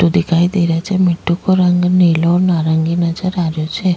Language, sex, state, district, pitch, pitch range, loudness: Rajasthani, female, Rajasthan, Nagaur, 175 Hz, 165-180 Hz, -14 LUFS